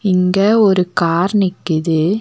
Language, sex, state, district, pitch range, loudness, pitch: Tamil, female, Tamil Nadu, Nilgiris, 170-200 Hz, -15 LUFS, 185 Hz